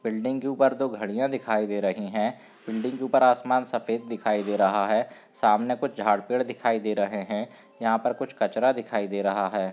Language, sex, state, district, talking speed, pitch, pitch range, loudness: Hindi, male, Andhra Pradesh, Guntur, 210 wpm, 115 Hz, 105-125 Hz, -26 LUFS